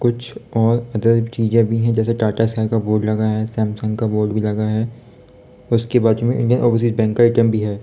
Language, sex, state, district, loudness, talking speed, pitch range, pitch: Hindi, male, Uttar Pradesh, Varanasi, -18 LUFS, 235 wpm, 110-115 Hz, 115 Hz